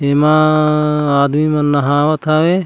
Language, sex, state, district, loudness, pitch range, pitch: Chhattisgarhi, male, Chhattisgarh, Raigarh, -13 LUFS, 145-155 Hz, 150 Hz